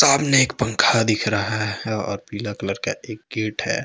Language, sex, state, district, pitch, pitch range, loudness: Hindi, male, Jharkhand, Deoghar, 110 Hz, 105-115 Hz, -21 LUFS